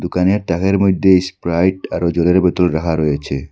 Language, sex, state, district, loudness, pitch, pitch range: Bengali, male, Assam, Hailakandi, -16 LUFS, 90 Hz, 85-95 Hz